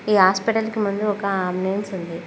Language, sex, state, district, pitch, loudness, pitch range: Telugu, female, Telangana, Mahabubabad, 195 Hz, -21 LUFS, 185-210 Hz